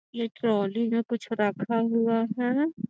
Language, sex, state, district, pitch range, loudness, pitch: Magahi, female, Bihar, Gaya, 225-235 Hz, -27 LUFS, 230 Hz